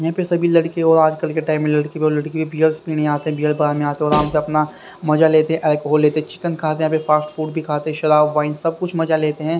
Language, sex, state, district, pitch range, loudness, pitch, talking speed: Hindi, male, Haryana, Rohtak, 150-160 Hz, -18 LUFS, 155 Hz, 285 wpm